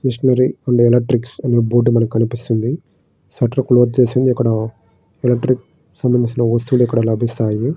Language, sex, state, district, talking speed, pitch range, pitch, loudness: Telugu, male, Andhra Pradesh, Srikakulam, 130 wpm, 115-125 Hz, 120 Hz, -16 LUFS